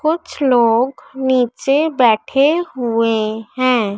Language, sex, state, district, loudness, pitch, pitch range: Hindi, female, Madhya Pradesh, Dhar, -16 LUFS, 255 Hz, 230-275 Hz